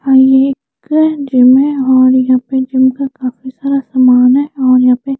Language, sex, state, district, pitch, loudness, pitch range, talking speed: Hindi, female, Chandigarh, Chandigarh, 265 Hz, -11 LUFS, 255-275 Hz, 185 wpm